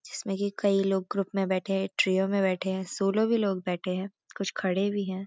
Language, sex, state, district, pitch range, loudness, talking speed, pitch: Hindi, female, Uttarakhand, Uttarkashi, 190-200 Hz, -28 LUFS, 240 wpm, 195 Hz